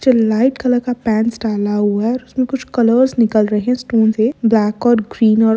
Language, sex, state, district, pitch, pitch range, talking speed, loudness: Hindi, female, Bihar, Kishanganj, 230 Hz, 220-250 Hz, 225 wpm, -15 LUFS